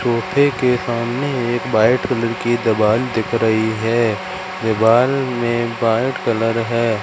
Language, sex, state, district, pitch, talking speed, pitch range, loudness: Hindi, male, Madhya Pradesh, Katni, 120 Hz, 135 wpm, 115-125 Hz, -17 LUFS